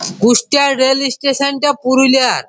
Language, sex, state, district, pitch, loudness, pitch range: Bengali, male, West Bengal, Purulia, 265 Hz, -13 LUFS, 255-280 Hz